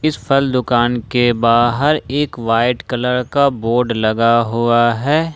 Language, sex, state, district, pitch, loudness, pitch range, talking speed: Hindi, male, Jharkhand, Ranchi, 120 Hz, -15 LUFS, 115-140 Hz, 145 wpm